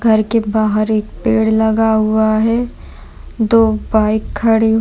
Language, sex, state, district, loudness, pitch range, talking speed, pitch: Hindi, female, Uttar Pradesh, Jalaun, -14 LUFS, 215-225 Hz, 150 wpm, 220 Hz